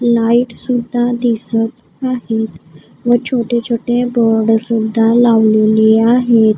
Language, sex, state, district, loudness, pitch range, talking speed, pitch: Marathi, female, Maharashtra, Gondia, -14 LUFS, 225-240 Hz, 100 wpm, 235 Hz